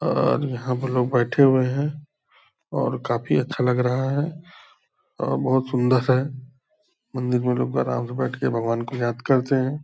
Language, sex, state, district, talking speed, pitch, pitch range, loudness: Hindi, male, Bihar, Purnia, 170 wpm, 130 Hz, 125-140 Hz, -23 LUFS